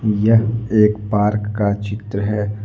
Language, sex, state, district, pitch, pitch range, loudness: Hindi, male, Jharkhand, Deoghar, 105 Hz, 105-110 Hz, -18 LUFS